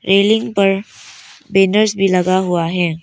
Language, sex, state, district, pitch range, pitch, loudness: Hindi, female, Arunachal Pradesh, Papum Pare, 180-205 Hz, 195 Hz, -15 LUFS